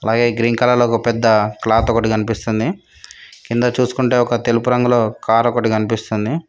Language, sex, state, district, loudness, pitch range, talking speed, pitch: Telugu, female, Telangana, Mahabubabad, -16 LUFS, 110-120 Hz, 155 wpm, 115 Hz